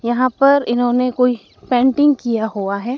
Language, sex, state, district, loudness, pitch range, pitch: Hindi, female, Madhya Pradesh, Dhar, -16 LUFS, 235-255 Hz, 245 Hz